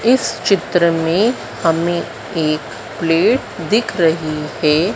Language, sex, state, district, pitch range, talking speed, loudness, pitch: Hindi, female, Madhya Pradesh, Dhar, 160-195 Hz, 110 wpm, -17 LUFS, 170 Hz